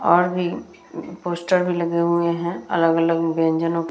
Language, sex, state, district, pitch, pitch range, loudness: Hindi, female, Bihar, Vaishali, 170 Hz, 165-175 Hz, -21 LUFS